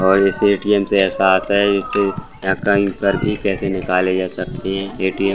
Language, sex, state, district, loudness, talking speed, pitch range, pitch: Hindi, male, Bihar, Saran, -17 LUFS, 200 wpm, 95-100 Hz, 100 Hz